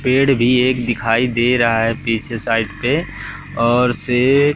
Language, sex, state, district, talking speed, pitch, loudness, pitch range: Hindi, male, Madhya Pradesh, Katni, 155 wpm, 120 Hz, -16 LUFS, 115-130 Hz